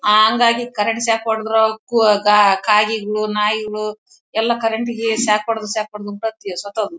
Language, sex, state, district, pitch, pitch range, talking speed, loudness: Kannada, female, Karnataka, Bellary, 215 Hz, 210-225 Hz, 145 wpm, -17 LUFS